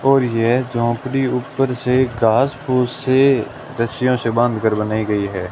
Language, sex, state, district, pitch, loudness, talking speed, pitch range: Hindi, male, Rajasthan, Bikaner, 125 Hz, -18 LUFS, 150 wpm, 115-130 Hz